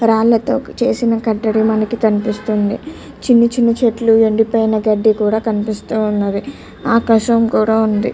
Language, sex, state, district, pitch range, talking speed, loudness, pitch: Telugu, female, Andhra Pradesh, Chittoor, 215-230 Hz, 110 wpm, -15 LUFS, 220 Hz